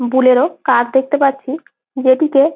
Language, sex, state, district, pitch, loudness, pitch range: Bengali, female, West Bengal, Malda, 275 Hz, -14 LUFS, 260-290 Hz